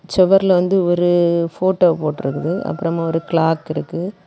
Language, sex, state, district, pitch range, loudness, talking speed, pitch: Tamil, female, Tamil Nadu, Kanyakumari, 165-185 Hz, -17 LUFS, 125 wpm, 170 Hz